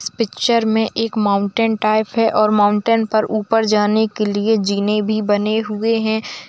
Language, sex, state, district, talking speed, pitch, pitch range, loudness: Hindi, female, Bihar, Kishanganj, 175 wpm, 215 Hz, 210-225 Hz, -17 LUFS